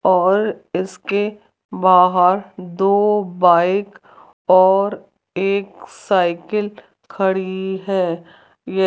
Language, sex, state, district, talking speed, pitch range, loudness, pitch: Hindi, female, Rajasthan, Jaipur, 80 wpm, 180-200 Hz, -17 LUFS, 190 Hz